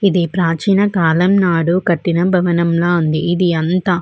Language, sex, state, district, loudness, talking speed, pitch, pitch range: Telugu, female, Andhra Pradesh, Visakhapatnam, -15 LUFS, 165 wpm, 175 Hz, 170-185 Hz